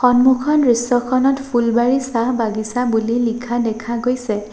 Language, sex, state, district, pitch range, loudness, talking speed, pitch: Assamese, female, Assam, Sonitpur, 230-255 Hz, -17 LUFS, 120 wpm, 240 Hz